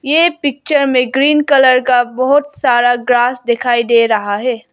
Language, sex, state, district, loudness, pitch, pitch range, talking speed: Hindi, female, Arunachal Pradesh, Lower Dibang Valley, -12 LUFS, 255 Hz, 240-280 Hz, 165 wpm